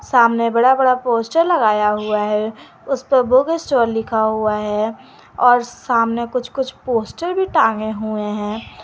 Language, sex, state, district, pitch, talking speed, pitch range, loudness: Hindi, female, Jharkhand, Garhwa, 230 Hz, 150 wpm, 215-255 Hz, -17 LUFS